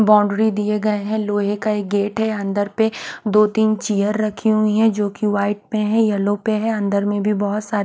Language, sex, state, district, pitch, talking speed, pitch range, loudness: Hindi, female, Haryana, Charkhi Dadri, 210 Hz, 235 wpm, 205-215 Hz, -19 LUFS